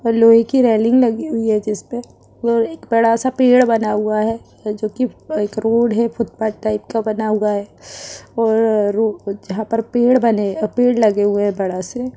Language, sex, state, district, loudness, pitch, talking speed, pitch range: Hindi, female, Uttar Pradesh, Budaun, -17 LUFS, 225 Hz, 195 wpm, 210-235 Hz